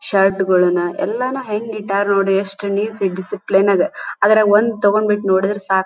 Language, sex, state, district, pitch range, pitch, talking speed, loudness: Kannada, female, Karnataka, Dharwad, 195-210 Hz, 200 Hz, 165 wpm, -17 LUFS